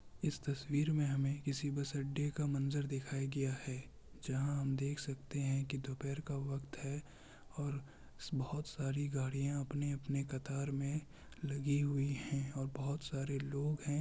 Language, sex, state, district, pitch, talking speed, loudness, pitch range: Hindi, male, Bihar, Kishanganj, 140 Hz, 160 wpm, -40 LUFS, 135-145 Hz